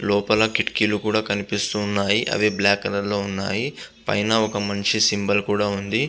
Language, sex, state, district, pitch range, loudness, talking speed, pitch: Telugu, male, Andhra Pradesh, Visakhapatnam, 100-110 Hz, -21 LUFS, 150 wpm, 105 Hz